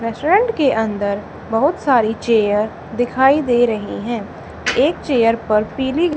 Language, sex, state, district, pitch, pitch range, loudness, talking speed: Hindi, female, Haryana, Charkhi Dadri, 235 Hz, 220-265 Hz, -17 LUFS, 135 wpm